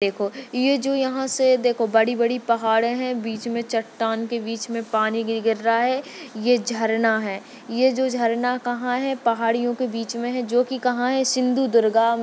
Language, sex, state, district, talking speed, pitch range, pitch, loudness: Hindi, female, Maharashtra, Sindhudurg, 190 wpm, 225-250 Hz, 235 Hz, -22 LUFS